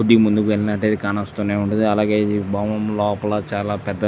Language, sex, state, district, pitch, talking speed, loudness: Telugu, male, Andhra Pradesh, Chittoor, 105 Hz, 160 wpm, -20 LUFS